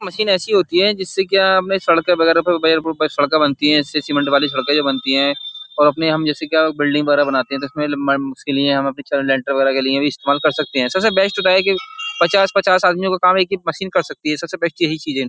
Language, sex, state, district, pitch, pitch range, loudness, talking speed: Hindi, male, Uttar Pradesh, Jyotiba Phule Nagar, 155 Hz, 140-185 Hz, -16 LUFS, 265 wpm